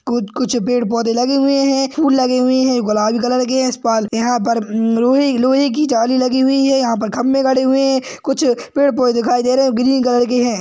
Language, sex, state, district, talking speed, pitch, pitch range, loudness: Hindi, male, Maharashtra, Dhule, 225 wpm, 255 Hz, 240-270 Hz, -15 LUFS